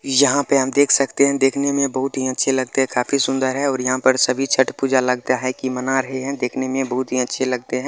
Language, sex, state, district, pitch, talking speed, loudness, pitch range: Maithili, male, Bihar, Madhepura, 130 Hz, 265 wpm, -19 LUFS, 130-135 Hz